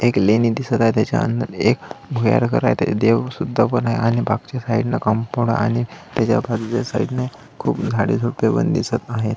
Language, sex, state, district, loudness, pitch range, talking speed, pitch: Marathi, male, Maharashtra, Solapur, -19 LUFS, 110-120 Hz, 180 wpm, 115 Hz